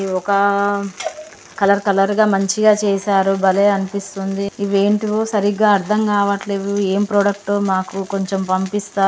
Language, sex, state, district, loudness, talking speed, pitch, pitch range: Telugu, female, Andhra Pradesh, Krishna, -17 LUFS, 130 wpm, 200 Hz, 195-205 Hz